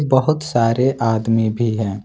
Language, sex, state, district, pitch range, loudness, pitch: Hindi, male, Jharkhand, Ranchi, 110-130 Hz, -18 LUFS, 115 Hz